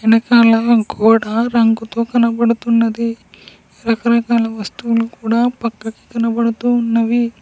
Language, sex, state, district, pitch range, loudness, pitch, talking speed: Telugu, female, Telangana, Mahabubabad, 225-235 Hz, -15 LUFS, 230 Hz, 80 wpm